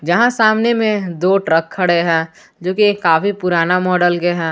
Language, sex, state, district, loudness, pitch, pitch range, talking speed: Hindi, male, Jharkhand, Garhwa, -15 LUFS, 180 Hz, 170-205 Hz, 185 wpm